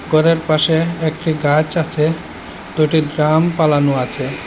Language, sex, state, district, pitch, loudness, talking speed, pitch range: Bengali, male, Assam, Hailakandi, 155 Hz, -16 LUFS, 120 wpm, 150-160 Hz